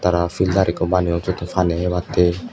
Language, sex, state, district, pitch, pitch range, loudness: Chakma, male, Tripura, Unakoti, 90 Hz, 85-90 Hz, -19 LUFS